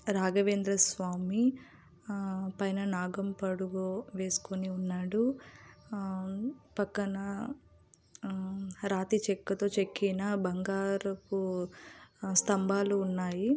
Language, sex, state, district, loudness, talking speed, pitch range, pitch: Telugu, female, Andhra Pradesh, Anantapur, -33 LUFS, 75 wpm, 190-200 Hz, 195 Hz